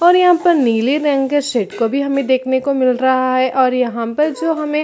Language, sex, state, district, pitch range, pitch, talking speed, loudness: Hindi, female, Chhattisgarh, Bilaspur, 255-300 Hz, 270 Hz, 250 wpm, -15 LUFS